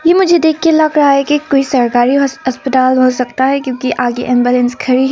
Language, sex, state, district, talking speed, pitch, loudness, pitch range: Hindi, female, Arunachal Pradesh, Papum Pare, 220 wpm, 265 Hz, -12 LUFS, 250-295 Hz